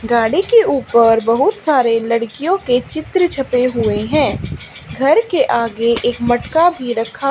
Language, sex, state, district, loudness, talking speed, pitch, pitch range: Hindi, female, Haryana, Charkhi Dadri, -15 LUFS, 150 wpm, 245 Hz, 230-315 Hz